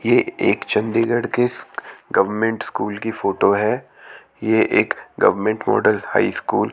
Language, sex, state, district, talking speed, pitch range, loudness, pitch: Hindi, male, Chandigarh, Chandigarh, 145 wpm, 105-115 Hz, -19 LUFS, 110 Hz